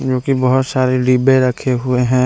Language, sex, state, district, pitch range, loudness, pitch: Hindi, male, Jharkhand, Deoghar, 125-130 Hz, -15 LUFS, 130 Hz